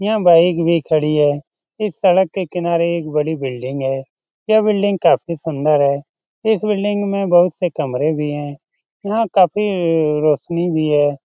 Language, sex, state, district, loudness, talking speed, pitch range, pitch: Hindi, male, Bihar, Lakhisarai, -17 LUFS, 165 wpm, 150-190 Hz, 170 Hz